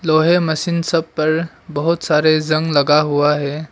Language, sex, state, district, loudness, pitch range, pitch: Hindi, male, Arunachal Pradesh, Longding, -16 LUFS, 150-165 Hz, 155 Hz